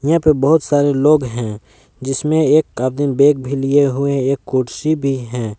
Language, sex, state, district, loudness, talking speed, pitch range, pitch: Hindi, male, Jharkhand, Palamu, -16 LUFS, 180 wpm, 130-145 Hz, 140 Hz